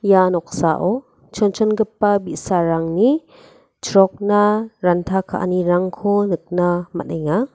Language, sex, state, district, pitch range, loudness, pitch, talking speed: Garo, female, Meghalaya, West Garo Hills, 175-210 Hz, -18 LUFS, 190 Hz, 70 wpm